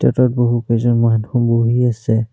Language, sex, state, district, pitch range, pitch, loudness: Assamese, male, Assam, Kamrup Metropolitan, 115-120 Hz, 115 Hz, -16 LUFS